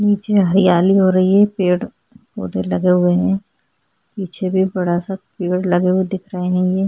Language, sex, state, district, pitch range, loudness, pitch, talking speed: Hindi, female, Uttarakhand, Tehri Garhwal, 175-190 Hz, -17 LUFS, 185 Hz, 175 wpm